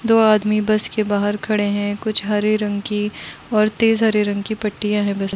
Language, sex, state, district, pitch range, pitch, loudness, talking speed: Hindi, female, Uttar Pradesh, Muzaffarnagar, 205-215 Hz, 210 Hz, -18 LUFS, 225 wpm